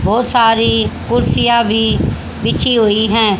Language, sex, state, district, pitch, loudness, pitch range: Hindi, female, Haryana, Jhajjar, 220 Hz, -13 LUFS, 205-230 Hz